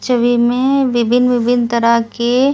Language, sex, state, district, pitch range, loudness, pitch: Hindi, female, Delhi, New Delhi, 235-250 Hz, -14 LUFS, 245 Hz